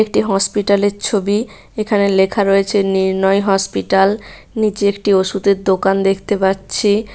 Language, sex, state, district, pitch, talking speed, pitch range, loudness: Bengali, female, West Bengal, Paschim Medinipur, 200 Hz, 135 wpm, 195-205 Hz, -15 LUFS